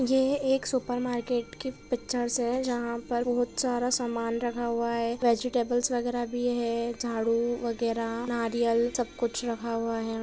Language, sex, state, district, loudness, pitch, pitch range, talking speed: Hindi, female, Maharashtra, Pune, -29 LUFS, 240 Hz, 235-245 Hz, 160 wpm